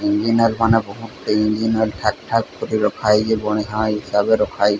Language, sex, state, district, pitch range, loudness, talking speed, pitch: Odia, male, Odisha, Sambalpur, 105-115 Hz, -19 LUFS, 175 wpm, 110 Hz